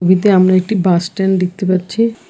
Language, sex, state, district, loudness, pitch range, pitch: Bengali, female, West Bengal, Alipurduar, -14 LUFS, 185-200 Hz, 185 Hz